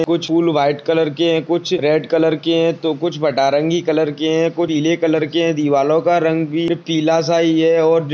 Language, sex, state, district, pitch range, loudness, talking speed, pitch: Hindi, male, Chhattisgarh, Sarguja, 155-165 Hz, -16 LUFS, 235 wpm, 165 Hz